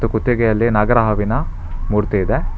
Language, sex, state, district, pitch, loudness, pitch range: Kannada, male, Karnataka, Bangalore, 110 Hz, -17 LUFS, 100-115 Hz